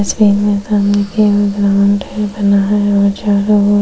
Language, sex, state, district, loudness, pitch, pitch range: Hindi, female, Uttar Pradesh, Jyotiba Phule Nagar, -13 LUFS, 205 Hz, 200-205 Hz